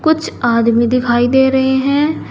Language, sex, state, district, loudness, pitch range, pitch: Hindi, female, Uttar Pradesh, Saharanpur, -13 LUFS, 240-275 Hz, 265 Hz